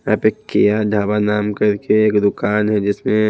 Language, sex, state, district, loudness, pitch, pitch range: Hindi, male, Himachal Pradesh, Shimla, -17 LUFS, 105 Hz, 105-110 Hz